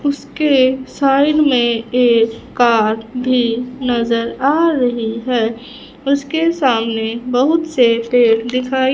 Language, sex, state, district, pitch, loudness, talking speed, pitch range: Hindi, female, Punjab, Fazilka, 250 Hz, -15 LUFS, 105 wpm, 230-275 Hz